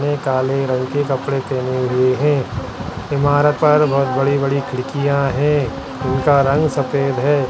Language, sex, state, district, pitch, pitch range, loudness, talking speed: Hindi, male, Uttarakhand, Tehri Garhwal, 135 Hz, 130-145 Hz, -17 LUFS, 150 wpm